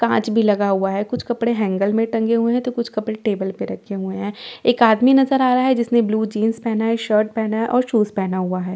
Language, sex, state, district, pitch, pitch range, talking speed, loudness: Hindi, female, Delhi, New Delhi, 220 Hz, 205-235 Hz, 265 wpm, -19 LUFS